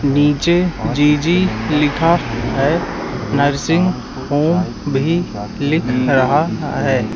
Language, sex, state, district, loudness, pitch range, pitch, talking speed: Hindi, male, Madhya Pradesh, Katni, -16 LUFS, 140-170 Hz, 145 Hz, 85 wpm